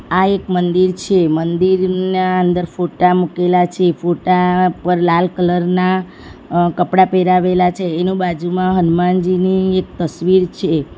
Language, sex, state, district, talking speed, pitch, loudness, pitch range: Gujarati, female, Gujarat, Valsad, 130 wpm, 180 Hz, -15 LUFS, 175-185 Hz